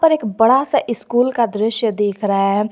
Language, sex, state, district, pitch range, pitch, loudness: Hindi, female, Jharkhand, Garhwa, 210-245 Hz, 225 Hz, -17 LUFS